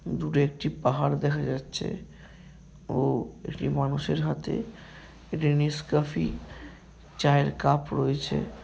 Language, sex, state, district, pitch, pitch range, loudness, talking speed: Bengali, male, West Bengal, North 24 Parganas, 145 Hz, 140-165 Hz, -28 LUFS, 95 wpm